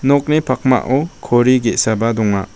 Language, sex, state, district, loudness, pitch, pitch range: Garo, male, Meghalaya, West Garo Hills, -15 LUFS, 125 Hz, 110-135 Hz